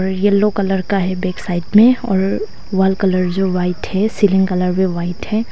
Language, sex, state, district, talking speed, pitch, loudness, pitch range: Hindi, female, Arunachal Pradesh, Longding, 195 wpm, 190 Hz, -16 LUFS, 185-205 Hz